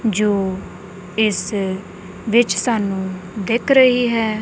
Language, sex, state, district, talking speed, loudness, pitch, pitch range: Punjabi, female, Punjab, Kapurthala, 95 wpm, -18 LUFS, 205 Hz, 190-230 Hz